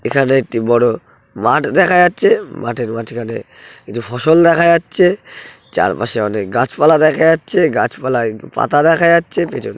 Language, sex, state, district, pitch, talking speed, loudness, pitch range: Bengali, male, West Bengal, Purulia, 145 Hz, 140 wpm, -14 LUFS, 120-170 Hz